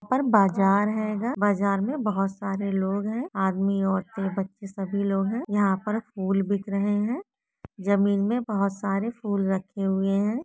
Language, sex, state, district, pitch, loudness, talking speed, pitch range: Hindi, female, West Bengal, Jalpaiguri, 200 Hz, -26 LUFS, 165 wpm, 195-210 Hz